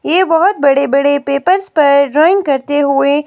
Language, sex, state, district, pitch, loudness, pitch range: Hindi, female, Himachal Pradesh, Shimla, 285 Hz, -12 LUFS, 280-335 Hz